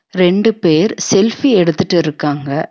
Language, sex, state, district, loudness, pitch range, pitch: Tamil, female, Tamil Nadu, Nilgiris, -13 LUFS, 160-200 Hz, 180 Hz